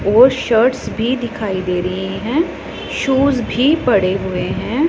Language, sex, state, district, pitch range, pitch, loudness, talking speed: Hindi, female, Punjab, Pathankot, 195-265 Hz, 240 Hz, -16 LUFS, 145 wpm